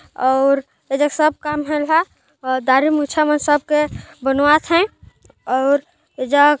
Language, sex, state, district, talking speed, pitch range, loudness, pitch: Chhattisgarhi, female, Chhattisgarh, Jashpur, 125 wpm, 275-305 Hz, -17 LUFS, 295 Hz